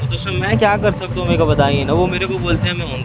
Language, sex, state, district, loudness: Hindi, male, Chhattisgarh, Raipur, -16 LUFS